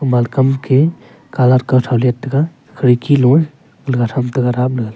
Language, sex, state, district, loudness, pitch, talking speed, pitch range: Wancho, male, Arunachal Pradesh, Longding, -14 LUFS, 130 Hz, 180 wpm, 125-140 Hz